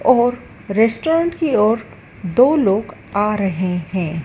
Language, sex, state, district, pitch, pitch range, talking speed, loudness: Hindi, female, Madhya Pradesh, Dhar, 215 Hz, 195-250 Hz, 125 wpm, -17 LUFS